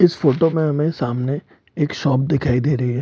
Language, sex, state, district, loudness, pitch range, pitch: Hindi, male, Bihar, Purnia, -19 LUFS, 130-155 Hz, 145 Hz